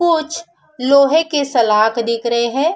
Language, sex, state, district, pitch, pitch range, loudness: Hindi, female, Bihar, Vaishali, 280 Hz, 235-320 Hz, -15 LUFS